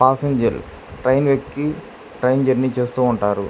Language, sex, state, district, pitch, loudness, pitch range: Telugu, male, Andhra Pradesh, Krishna, 130 Hz, -19 LUFS, 125-135 Hz